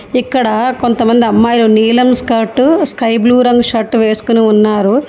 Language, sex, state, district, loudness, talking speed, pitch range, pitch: Telugu, female, Telangana, Hyderabad, -11 LUFS, 130 wpm, 220-250 Hz, 235 Hz